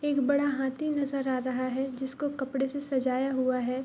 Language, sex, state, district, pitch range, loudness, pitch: Hindi, female, Bihar, Gopalganj, 255-280 Hz, -29 LUFS, 270 Hz